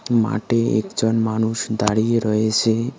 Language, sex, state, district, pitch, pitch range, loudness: Bengali, male, West Bengal, Cooch Behar, 110 Hz, 110-115 Hz, -20 LUFS